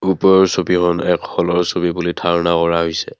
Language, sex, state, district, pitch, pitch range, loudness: Assamese, male, Assam, Kamrup Metropolitan, 85 Hz, 85-90 Hz, -16 LUFS